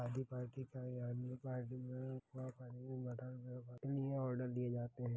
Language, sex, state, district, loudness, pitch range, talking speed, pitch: Hindi, male, Bihar, Begusarai, -46 LUFS, 125-130 Hz, 95 wpm, 125 Hz